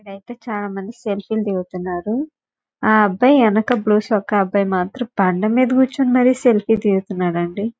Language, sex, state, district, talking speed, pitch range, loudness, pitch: Telugu, male, Andhra Pradesh, Guntur, 145 wpm, 195-240 Hz, -18 LUFS, 210 Hz